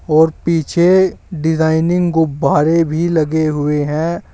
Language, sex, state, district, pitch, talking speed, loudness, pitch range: Hindi, male, Uttar Pradesh, Saharanpur, 160 Hz, 110 wpm, -15 LUFS, 155-170 Hz